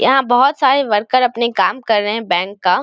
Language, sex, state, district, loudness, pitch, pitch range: Hindi, female, Bihar, Samastipur, -15 LUFS, 240 Hz, 210-265 Hz